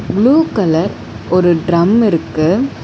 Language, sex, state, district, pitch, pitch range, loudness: Tamil, female, Tamil Nadu, Chennai, 180 Hz, 165-220 Hz, -13 LUFS